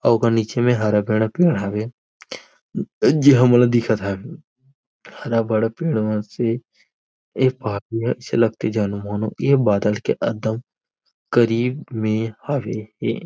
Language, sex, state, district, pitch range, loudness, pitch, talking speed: Chhattisgarhi, male, Chhattisgarh, Rajnandgaon, 110-125 Hz, -20 LUFS, 115 Hz, 120 wpm